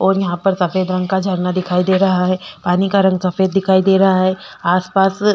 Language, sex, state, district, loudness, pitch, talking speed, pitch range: Hindi, female, Chhattisgarh, Korba, -16 LUFS, 185 Hz, 225 wpm, 185-195 Hz